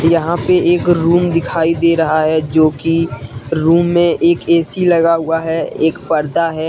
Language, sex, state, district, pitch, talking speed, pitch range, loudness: Hindi, male, Jharkhand, Deoghar, 165 Hz, 180 wpm, 160-170 Hz, -14 LUFS